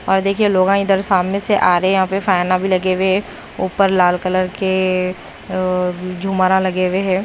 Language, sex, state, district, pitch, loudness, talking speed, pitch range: Hindi, female, Punjab, Kapurthala, 185 Hz, -16 LUFS, 205 wpm, 185-195 Hz